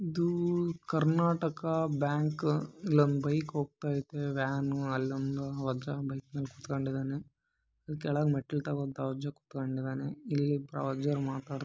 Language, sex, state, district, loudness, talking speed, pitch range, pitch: Kannada, male, Karnataka, Bellary, -33 LUFS, 105 wpm, 135-155 Hz, 145 Hz